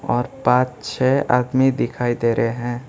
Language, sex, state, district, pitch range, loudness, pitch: Hindi, male, West Bengal, Alipurduar, 120-130 Hz, -19 LUFS, 125 Hz